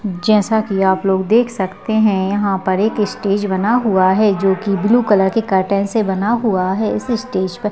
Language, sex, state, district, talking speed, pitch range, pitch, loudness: Hindi, female, Bihar, Madhepura, 210 wpm, 190-220 Hz, 200 Hz, -16 LUFS